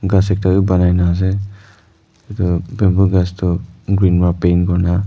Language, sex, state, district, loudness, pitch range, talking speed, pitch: Nagamese, male, Nagaland, Kohima, -15 LUFS, 90-100 Hz, 165 wpm, 95 Hz